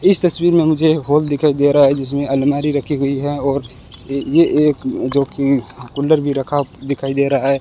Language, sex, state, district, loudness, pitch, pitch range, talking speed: Hindi, male, Rajasthan, Bikaner, -16 LUFS, 140 Hz, 140-150 Hz, 215 wpm